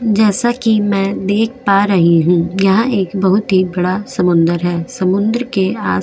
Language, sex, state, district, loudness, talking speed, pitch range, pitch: Hindi, female, Goa, North and South Goa, -14 LUFS, 180 wpm, 180-215 Hz, 195 Hz